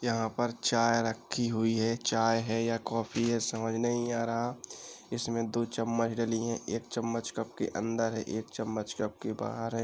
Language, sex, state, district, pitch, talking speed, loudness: Hindi, male, Uttar Pradesh, Jalaun, 115 Hz, 195 wpm, -32 LUFS